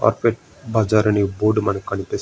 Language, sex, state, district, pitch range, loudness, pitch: Telugu, male, Andhra Pradesh, Srikakulam, 100-115 Hz, -20 LUFS, 105 Hz